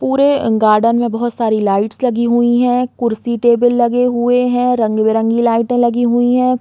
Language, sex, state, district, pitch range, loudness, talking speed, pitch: Hindi, female, Chhattisgarh, Bastar, 230-245 Hz, -14 LUFS, 165 wpm, 240 Hz